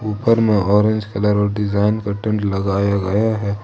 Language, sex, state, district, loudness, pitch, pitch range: Hindi, male, Jharkhand, Ranchi, -18 LUFS, 105 Hz, 100-110 Hz